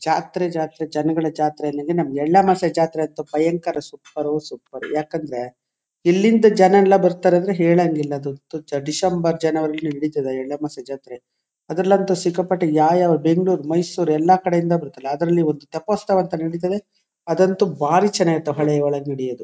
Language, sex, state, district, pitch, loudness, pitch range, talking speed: Kannada, female, Karnataka, Shimoga, 165 Hz, -19 LUFS, 150-180 Hz, 135 wpm